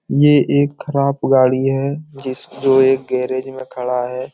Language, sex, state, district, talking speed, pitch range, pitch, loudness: Hindi, male, Bihar, Jahanabad, 180 wpm, 130-140 Hz, 135 Hz, -16 LUFS